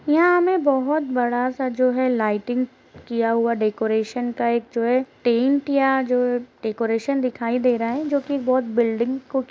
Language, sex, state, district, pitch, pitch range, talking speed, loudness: Hindi, female, Uttar Pradesh, Deoria, 250 Hz, 235-265 Hz, 185 wpm, -21 LUFS